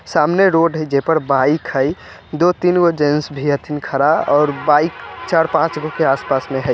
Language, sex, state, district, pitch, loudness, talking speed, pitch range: Bajjika, male, Bihar, Vaishali, 150 Hz, -16 LUFS, 180 wpm, 140-165 Hz